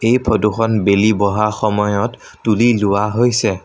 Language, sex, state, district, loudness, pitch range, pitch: Assamese, male, Assam, Sonitpur, -16 LUFS, 105-115 Hz, 110 Hz